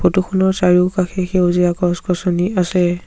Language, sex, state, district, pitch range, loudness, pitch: Assamese, male, Assam, Sonitpur, 180-185 Hz, -16 LUFS, 180 Hz